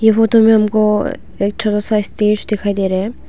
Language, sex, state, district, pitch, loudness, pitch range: Hindi, female, Arunachal Pradesh, Longding, 210 Hz, -15 LUFS, 205-220 Hz